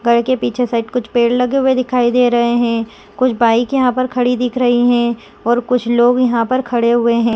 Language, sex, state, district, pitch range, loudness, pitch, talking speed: Hindi, female, Chhattisgarh, Raigarh, 235-250 Hz, -15 LUFS, 240 Hz, 230 wpm